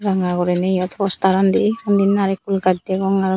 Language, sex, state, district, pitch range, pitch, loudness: Chakma, female, Tripura, Dhalai, 185-195 Hz, 195 Hz, -18 LUFS